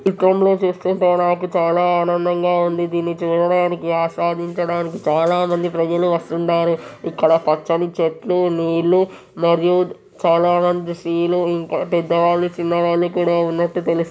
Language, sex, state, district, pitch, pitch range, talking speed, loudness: Telugu, male, Telangana, Nalgonda, 170 Hz, 170-175 Hz, 110 wpm, -18 LUFS